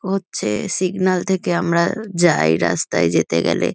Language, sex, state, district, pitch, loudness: Bengali, female, West Bengal, Kolkata, 175 Hz, -18 LUFS